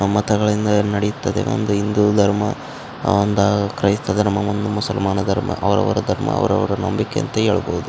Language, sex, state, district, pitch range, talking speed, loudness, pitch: Kannada, male, Karnataka, Raichur, 100-105 Hz, 130 wpm, -19 LUFS, 105 Hz